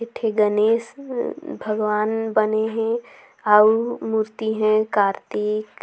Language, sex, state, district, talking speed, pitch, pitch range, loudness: Surgujia, female, Chhattisgarh, Sarguja, 105 wpm, 215 Hz, 215-225 Hz, -21 LUFS